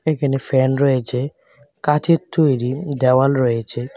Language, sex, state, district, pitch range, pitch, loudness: Bengali, male, Tripura, West Tripura, 130-145 Hz, 135 Hz, -18 LUFS